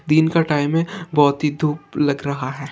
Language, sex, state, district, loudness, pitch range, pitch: Hindi, male, Chhattisgarh, Sarguja, -19 LUFS, 145-160 Hz, 150 Hz